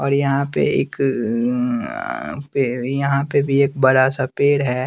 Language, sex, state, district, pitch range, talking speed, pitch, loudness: Hindi, male, Bihar, West Champaran, 125-140 Hz, 175 wpm, 135 Hz, -19 LUFS